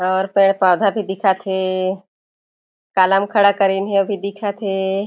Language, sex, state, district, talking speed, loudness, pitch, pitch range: Chhattisgarhi, female, Chhattisgarh, Jashpur, 140 wpm, -17 LUFS, 195 Hz, 185-200 Hz